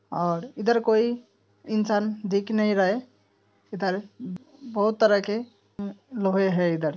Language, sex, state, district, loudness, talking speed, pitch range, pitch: Hindi, female, Uttar Pradesh, Hamirpur, -25 LUFS, 140 wpm, 185-220 Hz, 205 Hz